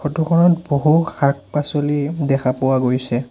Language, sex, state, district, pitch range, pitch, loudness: Assamese, male, Assam, Sonitpur, 130-155 Hz, 145 Hz, -17 LUFS